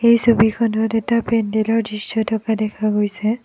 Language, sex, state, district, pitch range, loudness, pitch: Assamese, female, Assam, Kamrup Metropolitan, 215-230 Hz, -18 LUFS, 220 Hz